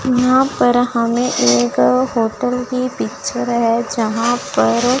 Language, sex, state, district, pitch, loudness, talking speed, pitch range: Hindi, female, Chandigarh, Chandigarh, 245 Hz, -16 LUFS, 120 wpm, 230-250 Hz